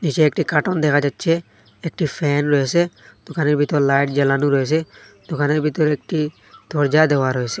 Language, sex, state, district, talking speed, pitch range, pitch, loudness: Bengali, male, Assam, Hailakandi, 150 wpm, 140-160 Hz, 150 Hz, -19 LUFS